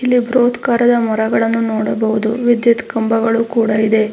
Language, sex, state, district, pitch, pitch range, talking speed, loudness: Kannada, female, Karnataka, Mysore, 230 Hz, 220-240 Hz, 115 wpm, -15 LUFS